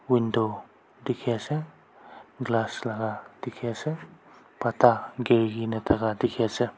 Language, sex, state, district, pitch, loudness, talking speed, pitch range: Nagamese, male, Nagaland, Kohima, 115 Hz, -27 LUFS, 115 wpm, 110-125 Hz